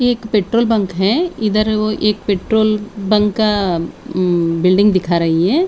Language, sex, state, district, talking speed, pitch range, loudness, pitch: Hindi, female, Chandigarh, Chandigarh, 170 wpm, 185-220 Hz, -15 LUFS, 210 Hz